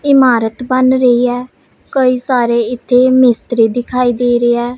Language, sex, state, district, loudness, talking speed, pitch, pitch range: Punjabi, female, Punjab, Pathankot, -12 LUFS, 140 wpm, 245 Hz, 240-255 Hz